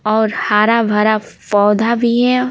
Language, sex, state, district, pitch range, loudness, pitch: Hindi, female, Bihar, Patna, 210-235 Hz, -14 LUFS, 220 Hz